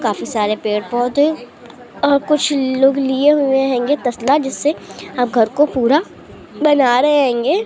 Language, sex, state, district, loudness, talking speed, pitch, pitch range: Hindi, female, Andhra Pradesh, Anantapur, -16 LUFS, 150 wpm, 270 Hz, 245-290 Hz